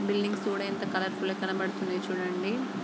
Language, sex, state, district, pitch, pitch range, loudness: Telugu, female, Andhra Pradesh, Guntur, 190 Hz, 185-205 Hz, -31 LUFS